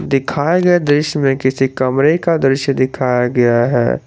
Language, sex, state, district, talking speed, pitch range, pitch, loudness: Hindi, male, Jharkhand, Garhwa, 150 wpm, 130-150 Hz, 135 Hz, -14 LUFS